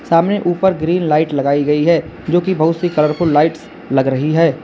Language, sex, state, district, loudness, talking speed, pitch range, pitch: Hindi, male, Uttar Pradesh, Lalitpur, -15 LUFS, 195 wpm, 150-175 Hz, 160 Hz